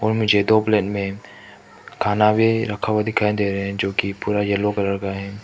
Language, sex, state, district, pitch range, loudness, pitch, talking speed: Hindi, male, Manipur, Imphal West, 100-105 Hz, -20 LUFS, 105 Hz, 210 wpm